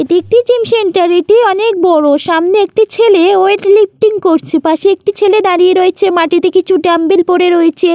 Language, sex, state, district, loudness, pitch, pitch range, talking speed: Bengali, female, West Bengal, Jalpaiguri, -9 LUFS, 370 Hz, 350-410 Hz, 165 wpm